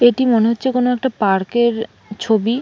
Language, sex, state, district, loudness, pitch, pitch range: Bengali, female, West Bengal, Purulia, -17 LUFS, 235 Hz, 220-250 Hz